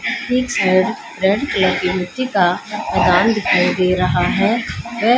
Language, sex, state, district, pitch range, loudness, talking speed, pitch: Hindi, female, Haryana, Rohtak, 185-235 Hz, -17 LUFS, 125 wpm, 200 Hz